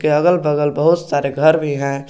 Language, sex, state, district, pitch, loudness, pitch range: Hindi, male, Jharkhand, Garhwa, 150 Hz, -16 LUFS, 140-155 Hz